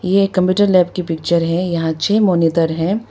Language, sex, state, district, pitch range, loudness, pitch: Hindi, female, Arunachal Pradesh, Papum Pare, 165-195 Hz, -16 LUFS, 180 Hz